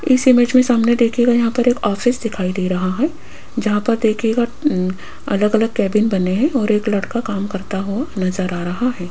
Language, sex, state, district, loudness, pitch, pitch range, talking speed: Hindi, female, Rajasthan, Jaipur, -17 LUFS, 225 Hz, 195-245 Hz, 205 wpm